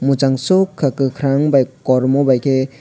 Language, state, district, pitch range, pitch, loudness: Kokborok, Tripura, West Tripura, 130-140 Hz, 135 Hz, -16 LUFS